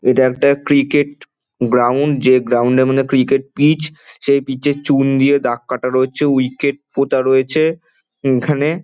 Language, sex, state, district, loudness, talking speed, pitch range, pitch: Bengali, male, West Bengal, Dakshin Dinajpur, -15 LUFS, 150 wpm, 130-145 Hz, 135 Hz